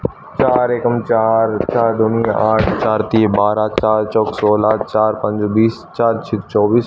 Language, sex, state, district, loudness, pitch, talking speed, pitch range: Hindi, male, Haryana, Rohtak, -15 LUFS, 110 Hz, 155 wpm, 105-115 Hz